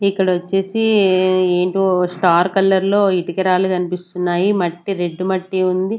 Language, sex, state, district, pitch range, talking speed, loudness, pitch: Telugu, female, Andhra Pradesh, Sri Satya Sai, 180-195 Hz, 120 wpm, -17 LUFS, 185 Hz